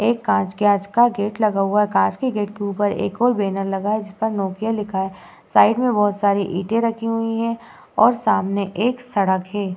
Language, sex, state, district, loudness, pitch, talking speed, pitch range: Hindi, female, Uttar Pradesh, Muzaffarnagar, -20 LUFS, 205 Hz, 215 wpm, 200-225 Hz